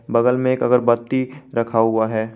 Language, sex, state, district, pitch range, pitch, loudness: Hindi, male, Jharkhand, Garhwa, 115-130 Hz, 120 Hz, -19 LUFS